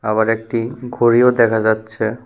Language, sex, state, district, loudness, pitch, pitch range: Bengali, male, Tripura, West Tripura, -16 LUFS, 115 Hz, 110-120 Hz